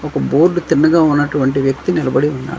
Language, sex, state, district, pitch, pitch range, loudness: Telugu, male, Andhra Pradesh, Manyam, 150 Hz, 135-165 Hz, -14 LUFS